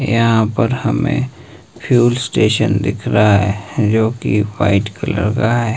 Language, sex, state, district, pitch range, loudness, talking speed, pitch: Hindi, male, Himachal Pradesh, Shimla, 105-120 Hz, -15 LUFS, 145 wpm, 110 Hz